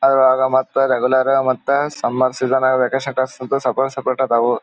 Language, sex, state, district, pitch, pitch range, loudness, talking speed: Kannada, male, Karnataka, Dharwad, 130 Hz, 130-135 Hz, -17 LUFS, 145 wpm